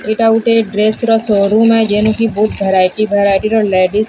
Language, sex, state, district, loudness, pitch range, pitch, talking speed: Odia, female, Odisha, Sambalpur, -12 LUFS, 200-225 Hz, 215 Hz, 130 wpm